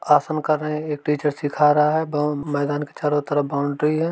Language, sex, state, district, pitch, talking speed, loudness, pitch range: Hindi, male, Uttar Pradesh, Varanasi, 150 Hz, 235 wpm, -21 LUFS, 145-150 Hz